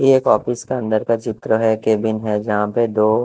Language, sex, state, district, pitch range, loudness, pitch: Hindi, male, Chhattisgarh, Raipur, 105-120 Hz, -18 LUFS, 110 Hz